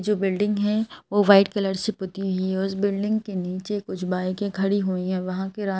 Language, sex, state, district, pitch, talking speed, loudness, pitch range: Hindi, female, Madhya Pradesh, Bhopal, 195 Hz, 220 wpm, -24 LUFS, 185-205 Hz